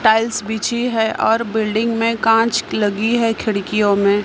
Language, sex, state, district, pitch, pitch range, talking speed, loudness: Hindi, female, Maharashtra, Mumbai Suburban, 220 Hz, 210-230 Hz, 155 wpm, -17 LUFS